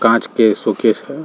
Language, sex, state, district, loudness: Hindi, male, Chhattisgarh, Rajnandgaon, -15 LUFS